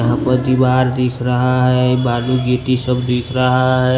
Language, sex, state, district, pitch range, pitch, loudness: Hindi, male, Maharashtra, Washim, 125-130 Hz, 125 Hz, -15 LUFS